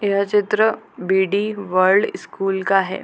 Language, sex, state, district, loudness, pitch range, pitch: Hindi, female, Bihar, Gopalganj, -19 LUFS, 190-205 Hz, 195 Hz